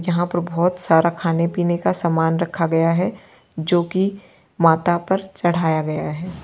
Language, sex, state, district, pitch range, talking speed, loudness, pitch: Hindi, female, Uttar Pradesh, Lalitpur, 165-180 Hz, 170 wpm, -19 LUFS, 170 Hz